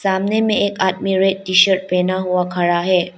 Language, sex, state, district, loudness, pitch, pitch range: Hindi, female, Arunachal Pradesh, Lower Dibang Valley, -16 LUFS, 190 Hz, 180-195 Hz